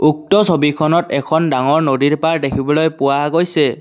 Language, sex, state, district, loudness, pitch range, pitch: Assamese, male, Assam, Kamrup Metropolitan, -15 LUFS, 140-160 Hz, 155 Hz